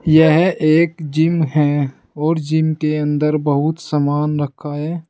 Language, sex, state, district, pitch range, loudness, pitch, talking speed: Hindi, male, Uttar Pradesh, Saharanpur, 150-160 Hz, -17 LUFS, 155 Hz, 140 wpm